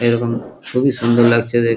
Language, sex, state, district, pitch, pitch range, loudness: Bengali, male, West Bengal, Kolkata, 120 Hz, 115-120 Hz, -16 LUFS